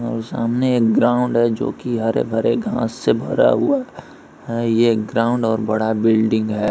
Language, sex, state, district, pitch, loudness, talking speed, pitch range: Hindi, male, Bihar, East Champaran, 115 Hz, -18 LUFS, 170 wpm, 110-120 Hz